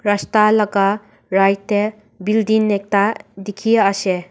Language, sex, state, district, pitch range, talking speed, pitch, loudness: Nagamese, female, Nagaland, Dimapur, 195-215 Hz, 95 wpm, 205 Hz, -17 LUFS